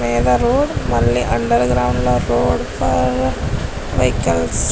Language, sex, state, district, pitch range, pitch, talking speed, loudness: Telugu, female, Andhra Pradesh, Guntur, 115-125 Hz, 120 Hz, 100 wpm, -17 LUFS